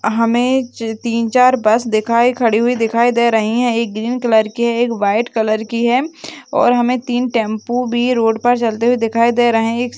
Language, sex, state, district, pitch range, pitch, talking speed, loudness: Hindi, female, West Bengal, Dakshin Dinajpur, 225-245 Hz, 235 Hz, 210 wpm, -15 LUFS